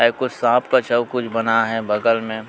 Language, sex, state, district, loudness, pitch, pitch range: Chhattisgarhi, male, Chhattisgarh, Sukma, -19 LUFS, 115 Hz, 115-125 Hz